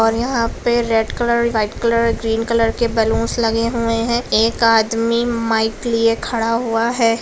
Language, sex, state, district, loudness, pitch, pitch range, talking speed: Hindi, female, Chhattisgarh, Raigarh, -17 LUFS, 230 Hz, 225-235 Hz, 175 wpm